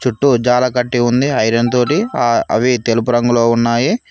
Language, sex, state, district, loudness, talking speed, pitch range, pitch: Telugu, male, Telangana, Mahabubabad, -14 LUFS, 160 wpm, 115-125 Hz, 125 Hz